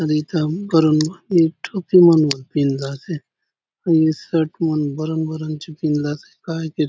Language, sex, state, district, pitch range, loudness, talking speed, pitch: Halbi, male, Chhattisgarh, Bastar, 150-165 Hz, -19 LUFS, 165 wpm, 160 Hz